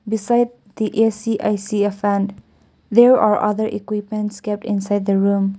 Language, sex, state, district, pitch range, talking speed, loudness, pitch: English, female, Nagaland, Kohima, 205-220 Hz, 160 wpm, -19 LUFS, 210 Hz